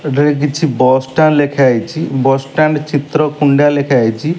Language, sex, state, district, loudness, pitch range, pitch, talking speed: Odia, male, Odisha, Malkangiri, -13 LUFS, 135-155 Hz, 145 Hz, 135 wpm